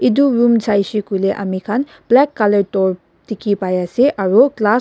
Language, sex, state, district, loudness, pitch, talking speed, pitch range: Nagamese, female, Nagaland, Dimapur, -16 LUFS, 210 Hz, 200 wpm, 195-240 Hz